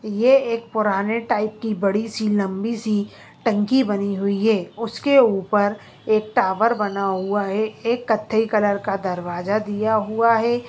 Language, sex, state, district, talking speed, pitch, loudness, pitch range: Hindi, female, Andhra Pradesh, Anantapur, 155 wpm, 215 Hz, -21 LUFS, 200-230 Hz